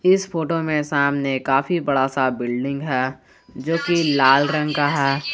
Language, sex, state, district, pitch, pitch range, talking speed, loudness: Hindi, male, Jharkhand, Garhwa, 140 Hz, 135-160 Hz, 170 wpm, -20 LUFS